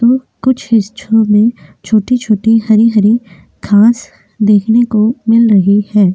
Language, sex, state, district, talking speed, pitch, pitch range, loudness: Hindi, female, Chhattisgarh, Korba, 115 wpm, 220 Hz, 210-230 Hz, -11 LUFS